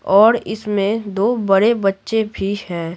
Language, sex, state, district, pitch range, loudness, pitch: Hindi, female, Bihar, Patna, 195-220 Hz, -17 LUFS, 205 Hz